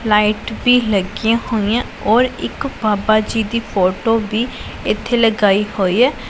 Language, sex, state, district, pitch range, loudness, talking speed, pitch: Punjabi, female, Punjab, Pathankot, 210-230 Hz, -17 LUFS, 145 wpm, 220 Hz